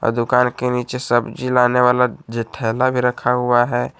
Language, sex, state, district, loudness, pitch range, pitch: Hindi, male, Jharkhand, Palamu, -18 LUFS, 120-125 Hz, 125 Hz